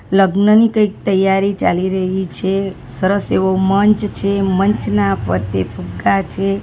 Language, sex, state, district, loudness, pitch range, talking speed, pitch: Gujarati, female, Gujarat, Valsad, -16 LUFS, 185-200 Hz, 125 wpm, 195 Hz